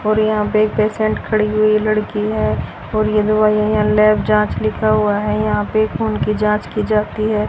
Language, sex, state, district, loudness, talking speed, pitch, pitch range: Hindi, female, Haryana, Rohtak, -16 LUFS, 200 wpm, 215 Hz, 210-215 Hz